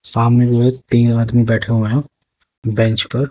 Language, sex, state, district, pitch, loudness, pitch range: Hindi, male, Haryana, Jhajjar, 120 Hz, -15 LUFS, 115-125 Hz